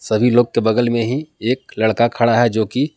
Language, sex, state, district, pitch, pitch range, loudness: Hindi, male, Jharkhand, Palamu, 120 Hz, 115-125 Hz, -17 LUFS